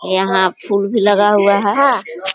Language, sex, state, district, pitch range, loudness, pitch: Hindi, female, Bihar, East Champaran, 190-205 Hz, -14 LUFS, 200 Hz